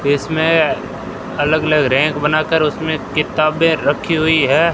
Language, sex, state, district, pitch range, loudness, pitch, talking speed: Hindi, male, Rajasthan, Bikaner, 150-160 Hz, -15 LUFS, 155 Hz, 125 wpm